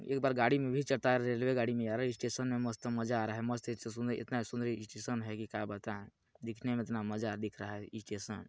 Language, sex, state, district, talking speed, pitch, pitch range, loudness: Hindi, male, Chhattisgarh, Balrampur, 260 wpm, 115 Hz, 110-125 Hz, -36 LUFS